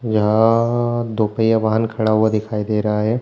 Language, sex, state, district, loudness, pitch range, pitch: Hindi, male, Chhattisgarh, Bilaspur, -18 LUFS, 110-115 Hz, 110 Hz